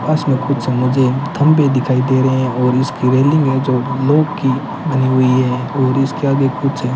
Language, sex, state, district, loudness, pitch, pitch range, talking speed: Hindi, male, Rajasthan, Bikaner, -15 LUFS, 130 Hz, 125-140 Hz, 205 wpm